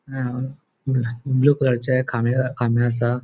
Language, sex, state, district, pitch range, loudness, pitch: Konkani, male, Goa, North and South Goa, 120-135 Hz, -21 LUFS, 130 Hz